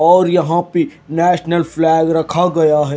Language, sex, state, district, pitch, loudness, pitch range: Hindi, male, Himachal Pradesh, Shimla, 165 Hz, -14 LUFS, 160-175 Hz